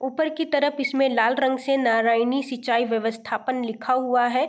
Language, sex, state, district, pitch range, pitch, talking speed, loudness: Hindi, female, Bihar, East Champaran, 230-270 Hz, 255 Hz, 175 wpm, -23 LUFS